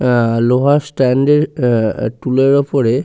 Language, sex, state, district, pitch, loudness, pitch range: Bengali, male, West Bengal, Purulia, 130 Hz, -14 LUFS, 120-140 Hz